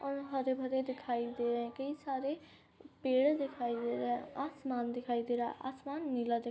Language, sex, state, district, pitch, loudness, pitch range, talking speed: Hindi, female, Jharkhand, Jamtara, 260 Hz, -37 LUFS, 240-275 Hz, 205 wpm